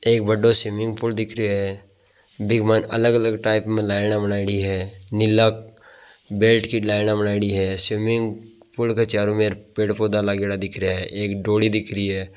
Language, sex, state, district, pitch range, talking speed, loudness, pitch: Hindi, male, Rajasthan, Nagaur, 100-110 Hz, 190 wpm, -18 LUFS, 105 Hz